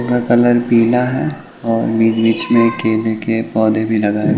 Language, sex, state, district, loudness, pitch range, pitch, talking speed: Hindi, male, Uttar Pradesh, Ghazipur, -15 LUFS, 110-120 Hz, 115 Hz, 190 wpm